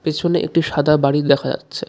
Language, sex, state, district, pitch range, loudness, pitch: Bengali, male, West Bengal, Darjeeling, 145-165 Hz, -17 LUFS, 150 Hz